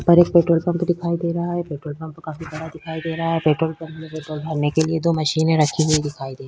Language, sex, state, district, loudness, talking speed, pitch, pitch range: Hindi, female, Uttar Pradesh, Jyotiba Phule Nagar, -21 LUFS, 260 wpm, 160 Hz, 155-170 Hz